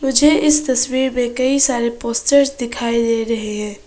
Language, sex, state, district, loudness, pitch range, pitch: Hindi, female, Arunachal Pradesh, Papum Pare, -16 LUFS, 235-270 Hz, 250 Hz